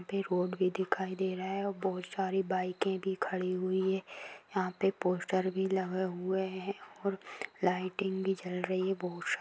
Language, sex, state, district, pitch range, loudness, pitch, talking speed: Hindi, female, Jharkhand, Sahebganj, 185-190 Hz, -34 LUFS, 190 Hz, 200 wpm